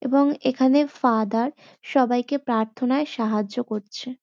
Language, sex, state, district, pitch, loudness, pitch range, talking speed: Bengali, female, West Bengal, North 24 Parganas, 255 Hz, -23 LUFS, 225-275 Hz, 100 wpm